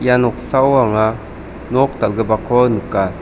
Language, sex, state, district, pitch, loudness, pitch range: Garo, male, Meghalaya, South Garo Hills, 115 Hz, -16 LUFS, 110-125 Hz